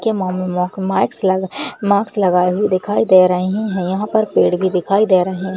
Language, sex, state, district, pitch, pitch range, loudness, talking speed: Hindi, female, Uttarakhand, Uttarkashi, 190 Hz, 185-200 Hz, -16 LUFS, 235 wpm